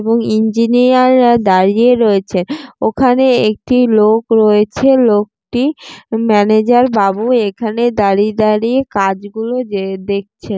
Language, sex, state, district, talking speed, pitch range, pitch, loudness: Bengali, female, West Bengal, Jalpaiguri, 100 wpm, 205-245 Hz, 220 Hz, -12 LUFS